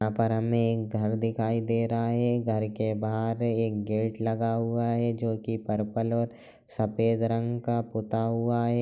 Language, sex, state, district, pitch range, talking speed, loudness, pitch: Hindi, male, Chhattisgarh, Raigarh, 110-115 Hz, 185 wpm, -28 LUFS, 115 Hz